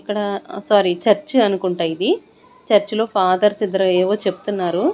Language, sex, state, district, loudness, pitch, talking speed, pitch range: Telugu, female, Andhra Pradesh, Sri Satya Sai, -18 LUFS, 205 Hz, 120 wpm, 190-215 Hz